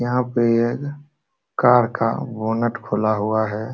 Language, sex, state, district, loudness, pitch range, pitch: Hindi, male, Uttar Pradesh, Jalaun, -20 LUFS, 110-125 Hz, 115 Hz